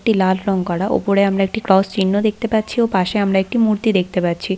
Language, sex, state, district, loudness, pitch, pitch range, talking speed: Bengali, female, West Bengal, Paschim Medinipur, -17 LUFS, 195 Hz, 190-215 Hz, 235 wpm